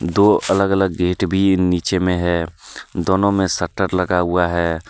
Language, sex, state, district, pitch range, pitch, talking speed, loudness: Hindi, male, Jharkhand, Deoghar, 85-95 Hz, 90 Hz, 170 wpm, -18 LUFS